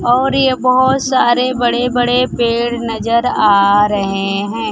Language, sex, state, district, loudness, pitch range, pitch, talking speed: Hindi, female, Bihar, Kaimur, -13 LUFS, 215-255 Hz, 240 Hz, 140 wpm